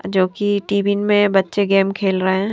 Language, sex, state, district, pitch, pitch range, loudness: Hindi, female, Himachal Pradesh, Shimla, 195 Hz, 195-205 Hz, -17 LUFS